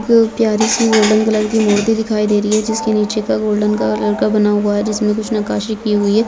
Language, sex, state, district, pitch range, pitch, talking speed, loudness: Hindi, female, Bihar, Begusarai, 210-220 Hz, 215 Hz, 260 wpm, -15 LUFS